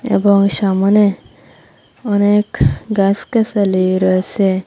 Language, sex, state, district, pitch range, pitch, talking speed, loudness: Bengali, female, Assam, Hailakandi, 190-210 Hz, 200 Hz, 65 wpm, -14 LUFS